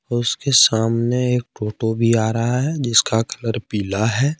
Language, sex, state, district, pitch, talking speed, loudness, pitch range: Hindi, male, Jharkhand, Ranchi, 115 Hz, 165 wpm, -18 LUFS, 110-125 Hz